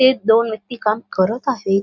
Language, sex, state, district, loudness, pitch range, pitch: Marathi, female, Maharashtra, Solapur, -18 LUFS, 210-245 Hz, 225 Hz